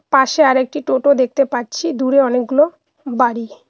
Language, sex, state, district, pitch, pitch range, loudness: Bengali, female, West Bengal, Cooch Behar, 270 Hz, 250-300 Hz, -16 LUFS